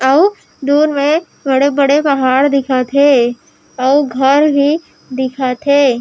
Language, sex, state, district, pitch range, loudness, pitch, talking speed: Chhattisgarhi, female, Chhattisgarh, Raigarh, 260-290 Hz, -13 LUFS, 280 Hz, 120 wpm